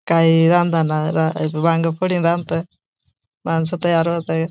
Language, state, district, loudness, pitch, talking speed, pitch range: Bhili, Maharashtra, Dhule, -18 LUFS, 165 Hz, 145 wpm, 160-170 Hz